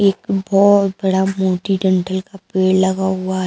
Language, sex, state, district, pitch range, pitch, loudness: Hindi, female, Maharashtra, Mumbai Suburban, 190-195 Hz, 190 Hz, -16 LUFS